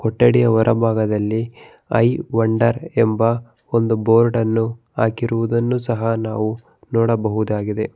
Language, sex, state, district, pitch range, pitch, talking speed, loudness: Kannada, male, Karnataka, Bangalore, 110-115 Hz, 115 Hz, 100 wpm, -18 LUFS